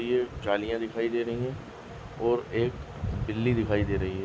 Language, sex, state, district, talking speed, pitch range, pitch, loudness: Hindi, male, Goa, North and South Goa, 185 wpm, 105-120 Hz, 115 Hz, -29 LUFS